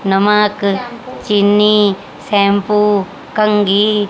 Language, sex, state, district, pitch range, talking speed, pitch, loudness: Hindi, female, Haryana, Charkhi Dadri, 200-210 Hz, 60 wpm, 205 Hz, -13 LUFS